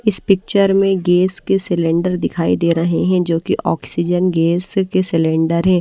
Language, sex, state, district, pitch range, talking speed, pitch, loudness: Hindi, female, Maharashtra, Washim, 165-190 Hz, 175 wpm, 180 Hz, -16 LUFS